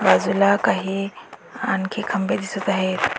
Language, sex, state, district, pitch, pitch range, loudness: Marathi, female, Maharashtra, Dhule, 195 Hz, 190-200 Hz, -21 LUFS